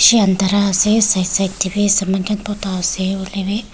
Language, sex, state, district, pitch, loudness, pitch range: Nagamese, female, Nagaland, Dimapur, 195 Hz, -16 LUFS, 190-205 Hz